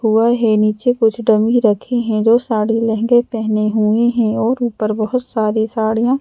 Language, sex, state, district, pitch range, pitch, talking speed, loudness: Hindi, female, Madhya Pradesh, Bhopal, 215-240 Hz, 225 Hz, 185 wpm, -15 LUFS